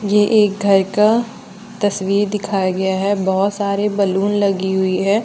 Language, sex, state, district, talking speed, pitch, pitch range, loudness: Hindi, female, Jharkhand, Deoghar, 160 wpm, 200 Hz, 195-205 Hz, -17 LUFS